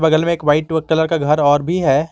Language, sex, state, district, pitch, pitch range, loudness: Hindi, male, Jharkhand, Garhwa, 160 Hz, 150-165 Hz, -16 LUFS